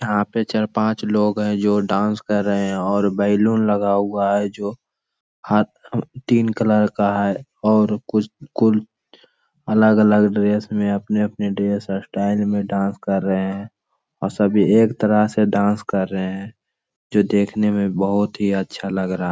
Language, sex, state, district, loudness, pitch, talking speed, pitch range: Hindi, male, Bihar, Araria, -19 LUFS, 105 Hz, 165 wpm, 100-105 Hz